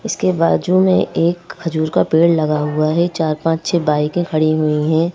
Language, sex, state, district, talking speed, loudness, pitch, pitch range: Hindi, female, Madhya Pradesh, Bhopal, 200 wpm, -16 LUFS, 165 Hz, 155-175 Hz